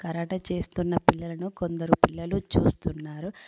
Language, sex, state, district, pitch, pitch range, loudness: Telugu, female, Telangana, Komaram Bheem, 175 Hz, 170-185 Hz, -27 LUFS